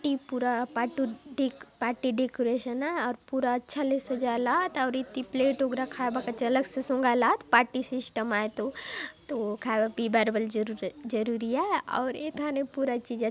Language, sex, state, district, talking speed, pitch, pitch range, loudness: Halbi, female, Chhattisgarh, Bastar, 165 wpm, 255 Hz, 235-265 Hz, -29 LUFS